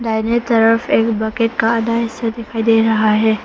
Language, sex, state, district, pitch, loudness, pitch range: Hindi, female, Arunachal Pradesh, Papum Pare, 225 Hz, -16 LUFS, 220-230 Hz